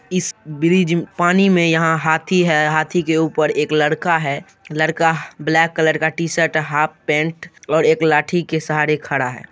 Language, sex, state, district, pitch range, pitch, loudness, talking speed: Hindi, male, Bihar, Supaul, 155-165 Hz, 160 Hz, -17 LUFS, 170 wpm